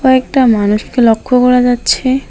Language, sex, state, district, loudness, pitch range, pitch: Bengali, female, West Bengal, Alipurduar, -11 LUFS, 235-260 Hz, 250 Hz